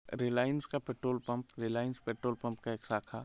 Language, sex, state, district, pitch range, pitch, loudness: Hindi, male, Chhattisgarh, Sarguja, 115-125 Hz, 120 Hz, -37 LUFS